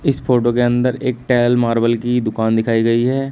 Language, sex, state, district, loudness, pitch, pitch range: Hindi, male, Uttar Pradesh, Shamli, -16 LUFS, 120 Hz, 115-125 Hz